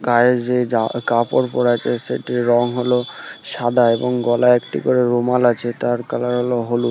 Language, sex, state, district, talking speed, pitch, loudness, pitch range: Bengali, male, West Bengal, Purulia, 180 wpm, 120 Hz, -18 LUFS, 120-125 Hz